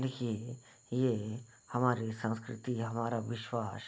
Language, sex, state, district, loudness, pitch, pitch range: Hindi, male, Bihar, Bhagalpur, -36 LUFS, 115 Hz, 115-120 Hz